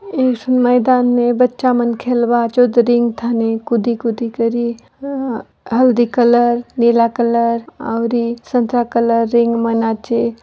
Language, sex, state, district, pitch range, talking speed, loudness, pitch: Halbi, female, Chhattisgarh, Bastar, 235-245 Hz, 110 wpm, -15 LUFS, 235 Hz